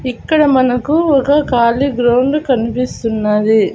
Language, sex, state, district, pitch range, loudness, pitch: Telugu, female, Andhra Pradesh, Annamaya, 235-285 Hz, -13 LUFS, 255 Hz